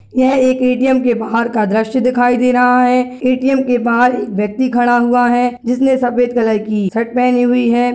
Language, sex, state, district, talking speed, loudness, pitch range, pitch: Angika, female, Bihar, Madhepura, 205 wpm, -13 LUFS, 235-250 Hz, 245 Hz